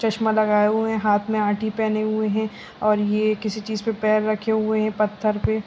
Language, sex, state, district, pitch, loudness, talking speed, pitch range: Hindi, female, Uttarakhand, Uttarkashi, 215 Hz, -22 LUFS, 220 wpm, 210-220 Hz